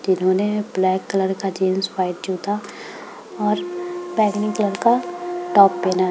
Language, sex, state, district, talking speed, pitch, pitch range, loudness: Hindi, female, Bihar, Madhepura, 135 wpm, 200 Hz, 190-215 Hz, -20 LUFS